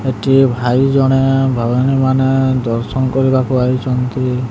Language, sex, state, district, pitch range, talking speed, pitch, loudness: Odia, male, Odisha, Sambalpur, 125-135 Hz, 95 wpm, 130 Hz, -14 LUFS